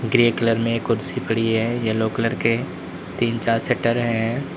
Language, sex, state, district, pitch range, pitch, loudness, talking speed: Hindi, male, Uttar Pradesh, Lalitpur, 115-120 Hz, 115 Hz, -21 LUFS, 170 wpm